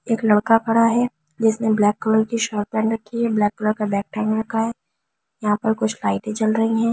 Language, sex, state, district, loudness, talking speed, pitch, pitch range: Hindi, female, Delhi, New Delhi, -20 LUFS, 235 wpm, 220 Hz, 210-225 Hz